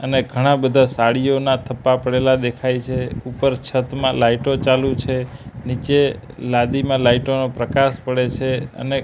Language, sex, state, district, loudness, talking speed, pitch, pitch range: Gujarati, male, Gujarat, Gandhinagar, -18 LUFS, 140 wpm, 130 Hz, 125-135 Hz